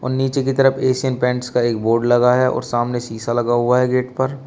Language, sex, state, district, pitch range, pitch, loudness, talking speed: Hindi, male, Uttar Pradesh, Shamli, 120-130 Hz, 125 Hz, -18 LUFS, 240 wpm